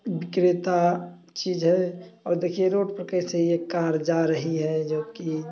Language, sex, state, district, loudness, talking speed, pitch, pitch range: Hindi, male, Bihar, Samastipur, -25 LUFS, 165 wpm, 175 Hz, 165-180 Hz